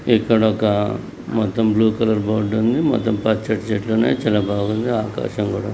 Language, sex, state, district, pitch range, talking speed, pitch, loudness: Telugu, male, Andhra Pradesh, Srikakulam, 105-115 Hz, 165 wpm, 110 Hz, -19 LUFS